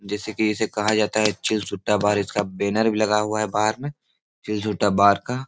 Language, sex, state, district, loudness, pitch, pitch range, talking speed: Hindi, male, Bihar, Supaul, -22 LUFS, 105 Hz, 105-110 Hz, 230 wpm